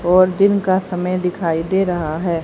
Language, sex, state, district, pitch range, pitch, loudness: Hindi, female, Haryana, Rohtak, 175-190 Hz, 180 Hz, -17 LUFS